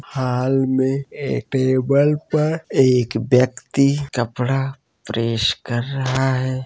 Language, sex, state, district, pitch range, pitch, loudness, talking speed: Hindi, male, Uttar Pradesh, Varanasi, 125-135 Hz, 130 Hz, -19 LUFS, 100 wpm